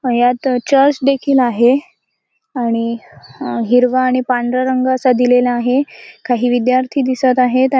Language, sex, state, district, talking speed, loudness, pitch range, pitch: Marathi, female, Maharashtra, Sindhudurg, 145 wpm, -14 LUFS, 245-260 Hz, 255 Hz